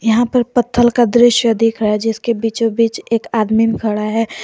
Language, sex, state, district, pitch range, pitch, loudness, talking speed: Hindi, female, Jharkhand, Garhwa, 220-235 Hz, 230 Hz, -15 LUFS, 205 wpm